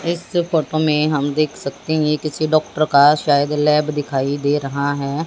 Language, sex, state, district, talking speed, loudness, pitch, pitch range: Hindi, female, Haryana, Jhajjar, 195 wpm, -18 LUFS, 150 Hz, 145-155 Hz